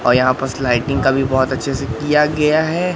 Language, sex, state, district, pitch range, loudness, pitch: Hindi, male, Madhya Pradesh, Katni, 130-150 Hz, -16 LUFS, 135 Hz